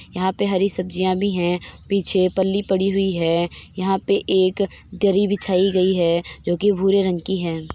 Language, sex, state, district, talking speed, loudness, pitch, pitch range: Hindi, female, Uttar Pradesh, Jyotiba Phule Nagar, 185 wpm, -20 LUFS, 190 Hz, 180-195 Hz